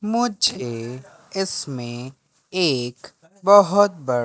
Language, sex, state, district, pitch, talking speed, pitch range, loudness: Hindi, male, Madhya Pradesh, Katni, 160 Hz, 70 wpm, 125-200 Hz, -20 LUFS